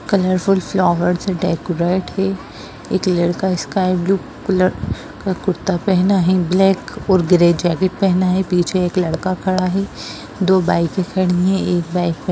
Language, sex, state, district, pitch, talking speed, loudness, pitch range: Hindi, female, Bihar, Sitamarhi, 185 Hz, 160 wpm, -17 LUFS, 180-190 Hz